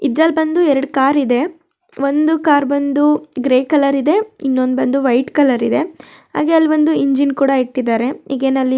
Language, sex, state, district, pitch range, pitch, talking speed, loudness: Kannada, male, Karnataka, Shimoga, 265-310 Hz, 280 Hz, 165 wpm, -15 LUFS